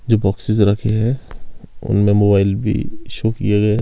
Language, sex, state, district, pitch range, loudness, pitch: Hindi, male, Himachal Pradesh, Shimla, 100-110 Hz, -17 LUFS, 105 Hz